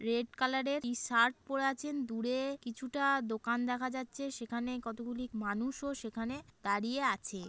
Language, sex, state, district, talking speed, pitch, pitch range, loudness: Bengali, female, West Bengal, Kolkata, 145 wpm, 250 Hz, 230-270 Hz, -35 LUFS